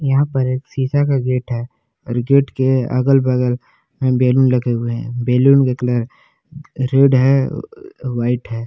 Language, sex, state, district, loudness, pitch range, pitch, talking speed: Hindi, male, Jharkhand, Palamu, -16 LUFS, 125-135 Hz, 130 Hz, 165 wpm